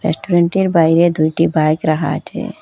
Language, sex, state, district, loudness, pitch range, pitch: Bengali, female, Assam, Hailakandi, -15 LUFS, 155-170 Hz, 165 Hz